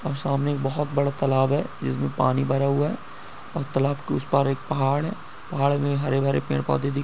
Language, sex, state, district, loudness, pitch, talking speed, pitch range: Hindi, male, Bihar, Supaul, -24 LUFS, 140 Hz, 220 wpm, 135-145 Hz